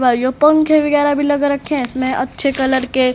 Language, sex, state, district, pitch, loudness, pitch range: Hindi, female, Haryana, Rohtak, 275 Hz, -15 LUFS, 260-290 Hz